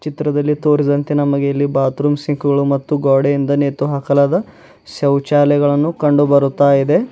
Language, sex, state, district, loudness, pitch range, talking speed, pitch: Kannada, male, Karnataka, Bidar, -15 LUFS, 140-145 Hz, 120 wpm, 145 Hz